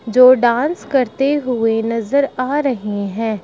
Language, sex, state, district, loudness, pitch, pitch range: Hindi, male, Uttar Pradesh, Shamli, -16 LUFS, 250 Hz, 225-275 Hz